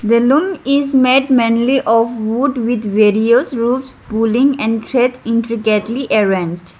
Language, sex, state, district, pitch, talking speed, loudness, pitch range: English, female, Arunachal Pradesh, Lower Dibang Valley, 235 Hz, 130 wpm, -14 LUFS, 220-260 Hz